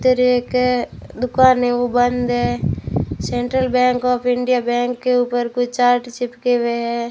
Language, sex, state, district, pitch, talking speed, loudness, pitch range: Hindi, female, Rajasthan, Bikaner, 245 Hz, 160 wpm, -18 LUFS, 245-250 Hz